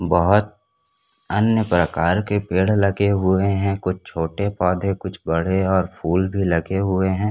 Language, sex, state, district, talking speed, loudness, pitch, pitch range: Hindi, male, Chhattisgarh, Korba, 155 wpm, -20 LUFS, 95 Hz, 90-105 Hz